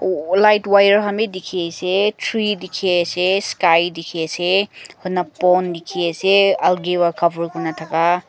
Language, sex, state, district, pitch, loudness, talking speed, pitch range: Nagamese, female, Nagaland, Kohima, 180 Hz, -17 LUFS, 110 wpm, 170-195 Hz